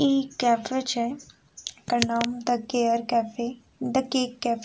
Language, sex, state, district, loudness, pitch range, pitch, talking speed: Maithili, female, Bihar, Sitamarhi, -26 LUFS, 235-260 Hz, 240 Hz, 155 wpm